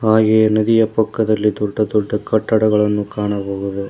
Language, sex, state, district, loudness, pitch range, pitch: Kannada, male, Karnataka, Koppal, -17 LUFS, 105-110 Hz, 105 Hz